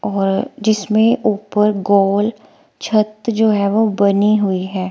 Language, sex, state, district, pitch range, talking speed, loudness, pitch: Hindi, female, Himachal Pradesh, Shimla, 200-215 Hz, 135 wpm, -16 LUFS, 210 Hz